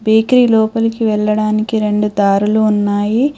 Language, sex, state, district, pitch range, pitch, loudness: Telugu, female, Telangana, Hyderabad, 210-225 Hz, 215 Hz, -14 LUFS